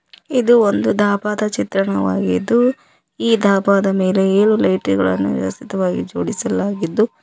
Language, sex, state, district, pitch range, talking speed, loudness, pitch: Kannada, female, Karnataka, Koppal, 170-215 Hz, 90 wpm, -17 LUFS, 195 Hz